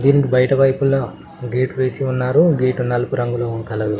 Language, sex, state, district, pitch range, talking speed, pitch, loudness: Telugu, male, Telangana, Mahabubabad, 120-135 Hz, 165 wpm, 130 Hz, -18 LUFS